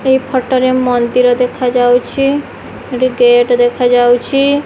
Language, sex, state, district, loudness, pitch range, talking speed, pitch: Odia, female, Odisha, Khordha, -12 LUFS, 245-265 Hz, 130 wpm, 250 Hz